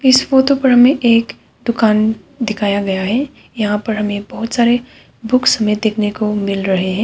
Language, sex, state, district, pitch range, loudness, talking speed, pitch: Hindi, female, Arunachal Pradesh, Papum Pare, 210-250 Hz, -15 LUFS, 180 wpm, 220 Hz